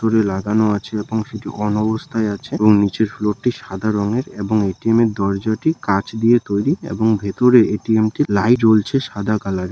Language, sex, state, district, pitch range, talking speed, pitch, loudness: Bengali, male, West Bengal, Malda, 100-115 Hz, 175 wpm, 110 Hz, -18 LUFS